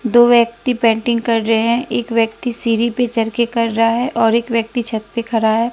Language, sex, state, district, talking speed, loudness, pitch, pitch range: Hindi, female, Bihar, West Champaran, 230 wpm, -16 LUFS, 230 Hz, 225-240 Hz